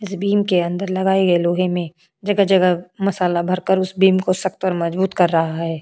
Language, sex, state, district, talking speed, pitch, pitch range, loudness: Hindi, female, Goa, North and South Goa, 215 wpm, 185 Hz, 175-190 Hz, -18 LUFS